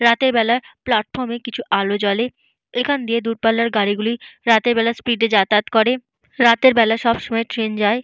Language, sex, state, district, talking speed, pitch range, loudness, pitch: Bengali, female, Jharkhand, Jamtara, 165 wpm, 220-240 Hz, -18 LUFS, 230 Hz